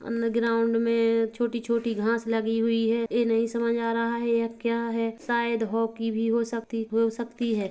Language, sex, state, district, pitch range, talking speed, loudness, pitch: Hindi, female, Chhattisgarh, Kabirdham, 225-235 Hz, 200 wpm, -26 LUFS, 230 Hz